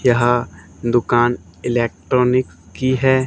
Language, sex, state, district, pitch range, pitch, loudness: Hindi, male, Haryana, Charkhi Dadri, 120-125 Hz, 120 Hz, -18 LUFS